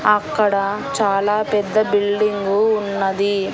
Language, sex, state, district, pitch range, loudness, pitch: Telugu, female, Andhra Pradesh, Annamaya, 200-210 Hz, -18 LUFS, 205 Hz